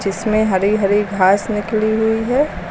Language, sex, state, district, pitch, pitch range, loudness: Hindi, female, Uttar Pradesh, Lucknow, 215 Hz, 200-220 Hz, -16 LUFS